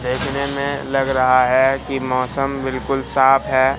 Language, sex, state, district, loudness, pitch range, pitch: Hindi, male, Madhya Pradesh, Katni, -18 LUFS, 130-135 Hz, 135 Hz